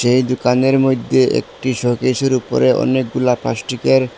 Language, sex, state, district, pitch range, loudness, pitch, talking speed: Bengali, male, Assam, Hailakandi, 125-130 Hz, -16 LUFS, 130 Hz, 115 wpm